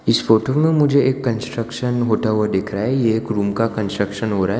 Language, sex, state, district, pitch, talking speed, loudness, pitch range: Hindi, male, Gujarat, Valsad, 110 Hz, 245 wpm, -19 LUFS, 105-125 Hz